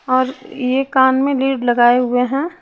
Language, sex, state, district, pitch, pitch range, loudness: Hindi, female, Chhattisgarh, Raipur, 260 Hz, 250-270 Hz, -16 LUFS